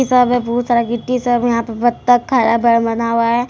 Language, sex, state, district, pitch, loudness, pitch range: Hindi, female, Bihar, Araria, 240 Hz, -15 LUFS, 230-245 Hz